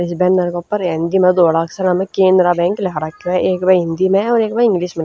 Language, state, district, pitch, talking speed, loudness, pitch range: Haryanvi, Haryana, Rohtak, 180 Hz, 275 wpm, -15 LUFS, 175-190 Hz